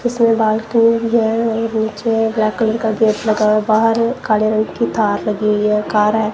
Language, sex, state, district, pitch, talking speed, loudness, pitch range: Hindi, female, Punjab, Kapurthala, 220 Hz, 190 wpm, -16 LUFS, 215-225 Hz